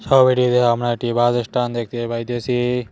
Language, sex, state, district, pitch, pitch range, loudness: Bengali, male, West Bengal, Cooch Behar, 120 Hz, 120-125 Hz, -19 LUFS